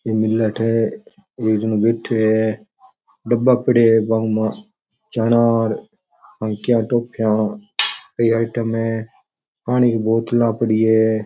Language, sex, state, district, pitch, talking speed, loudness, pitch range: Rajasthani, male, Rajasthan, Churu, 115 Hz, 95 wpm, -18 LUFS, 110-120 Hz